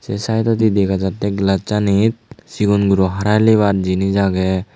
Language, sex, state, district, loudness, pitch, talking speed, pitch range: Chakma, male, Tripura, Unakoti, -16 LUFS, 100 Hz, 165 wpm, 95-110 Hz